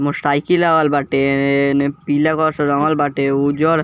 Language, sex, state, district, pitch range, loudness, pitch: Bhojpuri, male, Bihar, East Champaran, 140-155 Hz, -16 LUFS, 145 Hz